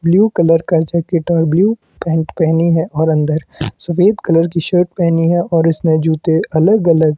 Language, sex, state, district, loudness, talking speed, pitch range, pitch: Hindi, male, Himachal Pradesh, Shimla, -14 LUFS, 190 wpm, 160-175 Hz, 165 Hz